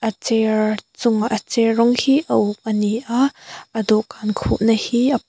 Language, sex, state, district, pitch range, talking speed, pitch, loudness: Mizo, female, Mizoram, Aizawl, 215-245 Hz, 180 wpm, 225 Hz, -19 LUFS